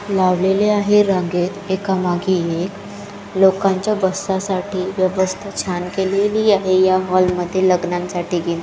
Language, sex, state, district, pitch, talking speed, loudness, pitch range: Marathi, female, Maharashtra, Chandrapur, 190 Hz, 105 wpm, -18 LUFS, 180-200 Hz